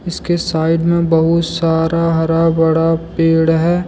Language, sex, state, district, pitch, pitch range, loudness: Hindi, male, Jharkhand, Deoghar, 165 Hz, 165-170 Hz, -14 LUFS